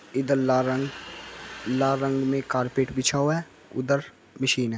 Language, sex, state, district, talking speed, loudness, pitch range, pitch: Hindi, male, Uttar Pradesh, Jyotiba Phule Nagar, 165 wpm, -25 LUFS, 130-135 Hz, 135 Hz